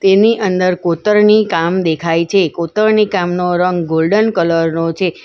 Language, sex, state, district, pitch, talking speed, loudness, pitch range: Gujarati, female, Gujarat, Valsad, 180 Hz, 150 wpm, -13 LUFS, 165-205 Hz